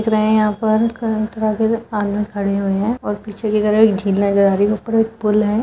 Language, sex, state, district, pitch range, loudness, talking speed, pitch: Hindi, female, Uttar Pradesh, Budaun, 205-220 Hz, -17 LUFS, 235 wpm, 215 Hz